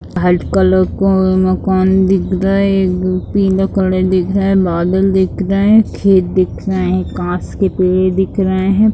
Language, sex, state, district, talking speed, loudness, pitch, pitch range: Hindi, female, Bihar, Gopalganj, 175 wpm, -13 LUFS, 190 Hz, 185-195 Hz